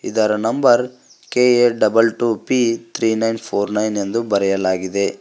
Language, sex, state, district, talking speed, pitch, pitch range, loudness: Kannada, male, Karnataka, Koppal, 140 wpm, 115 Hz, 100-115 Hz, -17 LUFS